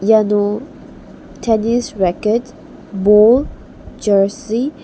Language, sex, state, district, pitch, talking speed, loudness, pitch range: Garo, female, Meghalaya, West Garo Hills, 215 Hz, 75 wpm, -15 LUFS, 205-230 Hz